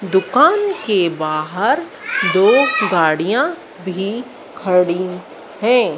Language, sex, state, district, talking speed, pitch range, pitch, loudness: Hindi, female, Madhya Pradesh, Dhar, 80 wpm, 180-245 Hz, 190 Hz, -16 LUFS